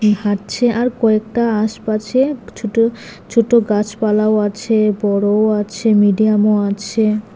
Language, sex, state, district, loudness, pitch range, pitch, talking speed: Bengali, female, Tripura, West Tripura, -16 LUFS, 210-230 Hz, 215 Hz, 100 wpm